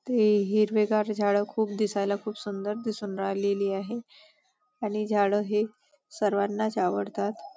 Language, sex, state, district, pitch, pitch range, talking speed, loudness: Marathi, female, Maharashtra, Nagpur, 210 Hz, 200-215 Hz, 120 wpm, -28 LUFS